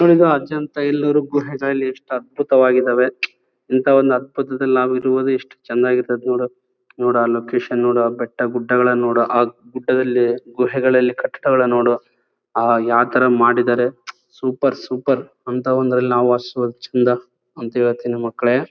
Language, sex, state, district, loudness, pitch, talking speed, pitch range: Kannada, male, Karnataka, Bellary, -18 LUFS, 125 Hz, 140 wpm, 120-130 Hz